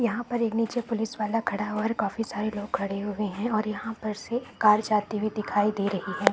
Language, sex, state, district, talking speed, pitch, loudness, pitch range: Hindi, female, Bihar, Saran, 255 wpm, 215 Hz, -27 LUFS, 205-225 Hz